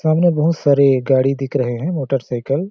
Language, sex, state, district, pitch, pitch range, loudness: Hindi, male, Chhattisgarh, Balrampur, 140 Hz, 130-160 Hz, -17 LUFS